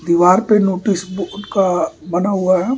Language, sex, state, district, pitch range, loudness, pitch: Hindi, male, Delhi, New Delhi, 180-200 Hz, -16 LUFS, 185 Hz